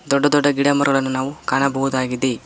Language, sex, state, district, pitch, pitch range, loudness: Kannada, male, Karnataka, Koppal, 135 Hz, 130-140 Hz, -18 LUFS